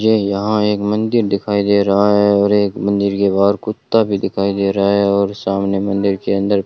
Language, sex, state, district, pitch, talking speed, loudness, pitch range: Hindi, male, Rajasthan, Bikaner, 100 Hz, 225 wpm, -16 LUFS, 100-105 Hz